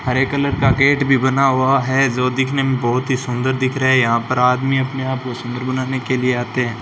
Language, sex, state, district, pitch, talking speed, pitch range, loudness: Hindi, male, Rajasthan, Bikaner, 130 Hz, 255 wpm, 125-135 Hz, -17 LUFS